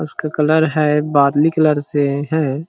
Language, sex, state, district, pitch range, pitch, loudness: Hindi, male, Chhattisgarh, Rajnandgaon, 145-155 Hz, 150 Hz, -16 LUFS